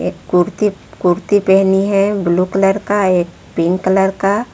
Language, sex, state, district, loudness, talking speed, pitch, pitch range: Hindi, female, Jharkhand, Palamu, -15 LUFS, 145 wpm, 195 Hz, 180-200 Hz